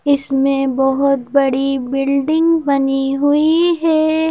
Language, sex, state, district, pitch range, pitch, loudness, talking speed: Hindi, female, Madhya Pradesh, Bhopal, 270-315 Hz, 275 Hz, -15 LUFS, 95 wpm